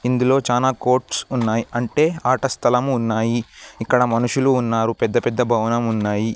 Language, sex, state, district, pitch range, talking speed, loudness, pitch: Telugu, male, Andhra Pradesh, Sri Satya Sai, 115-125 Hz, 140 wpm, -19 LUFS, 120 Hz